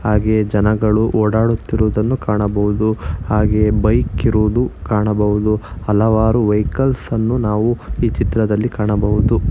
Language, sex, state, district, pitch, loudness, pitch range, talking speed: Kannada, male, Karnataka, Bangalore, 110 Hz, -16 LUFS, 105-110 Hz, 90 wpm